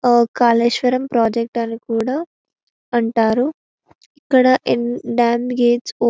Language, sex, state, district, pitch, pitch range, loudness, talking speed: Telugu, female, Telangana, Karimnagar, 240 Hz, 235-255 Hz, -17 LUFS, 100 wpm